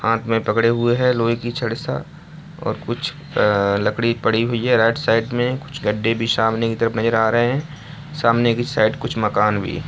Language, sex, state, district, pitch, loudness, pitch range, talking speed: Hindi, male, Bihar, Bhagalpur, 115 Hz, -19 LUFS, 110-125 Hz, 220 wpm